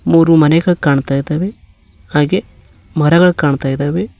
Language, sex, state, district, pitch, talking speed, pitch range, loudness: Kannada, male, Karnataka, Koppal, 150 Hz, 115 wpm, 135-165 Hz, -13 LUFS